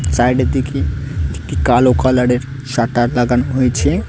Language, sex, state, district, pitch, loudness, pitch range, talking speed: Bengali, male, West Bengal, Cooch Behar, 125 Hz, -15 LUFS, 120-130 Hz, 145 wpm